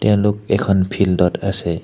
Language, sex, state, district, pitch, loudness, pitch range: Assamese, male, Assam, Hailakandi, 100 Hz, -17 LUFS, 95-105 Hz